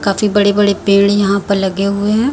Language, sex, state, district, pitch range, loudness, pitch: Hindi, female, Chhattisgarh, Raipur, 200-205 Hz, -13 LUFS, 200 Hz